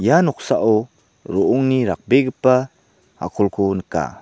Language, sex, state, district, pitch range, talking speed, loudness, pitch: Garo, male, Meghalaya, South Garo Hills, 100-135 Hz, 85 wpm, -18 LUFS, 125 Hz